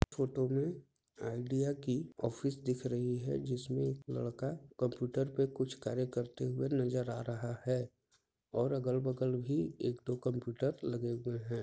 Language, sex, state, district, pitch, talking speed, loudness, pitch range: Hindi, male, Jharkhand, Jamtara, 125 Hz, 155 wpm, -37 LUFS, 120-135 Hz